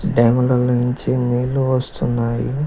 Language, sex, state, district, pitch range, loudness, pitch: Telugu, male, Telangana, Mahabubabad, 120-130 Hz, -18 LUFS, 125 Hz